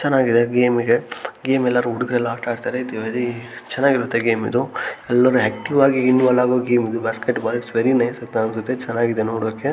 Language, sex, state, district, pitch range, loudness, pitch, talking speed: Kannada, male, Karnataka, Gulbarga, 115-125 Hz, -19 LUFS, 120 Hz, 180 wpm